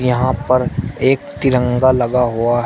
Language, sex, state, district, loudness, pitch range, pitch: Hindi, male, Uttar Pradesh, Shamli, -16 LUFS, 120-130 Hz, 125 Hz